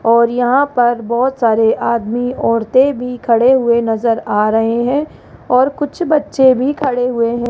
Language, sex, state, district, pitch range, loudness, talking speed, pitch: Hindi, female, Rajasthan, Jaipur, 230-265 Hz, -14 LUFS, 170 wpm, 245 Hz